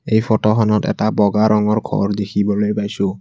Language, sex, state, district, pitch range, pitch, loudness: Assamese, male, Assam, Kamrup Metropolitan, 105-110 Hz, 105 Hz, -17 LUFS